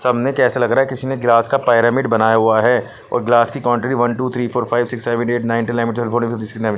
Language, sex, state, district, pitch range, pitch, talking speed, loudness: Hindi, male, Punjab, Pathankot, 115-125 Hz, 120 Hz, 300 wpm, -16 LUFS